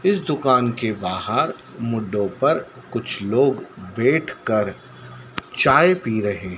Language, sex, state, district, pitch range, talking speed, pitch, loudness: Hindi, male, Madhya Pradesh, Dhar, 105-145 Hz, 110 wpm, 115 Hz, -20 LUFS